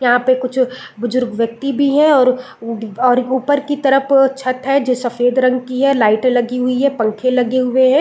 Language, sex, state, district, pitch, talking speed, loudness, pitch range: Hindi, female, Chhattisgarh, Raigarh, 255 Hz, 200 wpm, -15 LUFS, 245-270 Hz